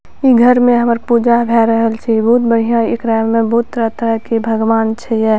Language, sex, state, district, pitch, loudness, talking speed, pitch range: Maithili, female, Bihar, Purnia, 230 Hz, -13 LUFS, 200 wpm, 225-235 Hz